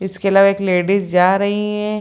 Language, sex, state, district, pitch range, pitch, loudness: Hindi, female, Bihar, Lakhisarai, 190-200 Hz, 195 Hz, -15 LUFS